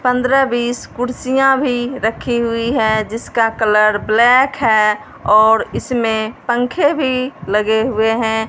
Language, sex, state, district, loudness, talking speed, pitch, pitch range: Hindi, female, Punjab, Fazilka, -15 LUFS, 125 wpm, 235 Hz, 220-255 Hz